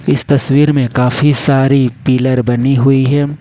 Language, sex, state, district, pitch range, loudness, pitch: Hindi, male, Jharkhand, Ranchi, 130-140 Hz, -12 LUFS, 135 Hz